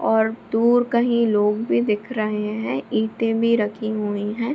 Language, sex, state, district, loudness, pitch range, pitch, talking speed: Hindi, female, Bihar, Begusarai, -21 LUFS, 210-230 Hz, 220 Hz, 170 wpm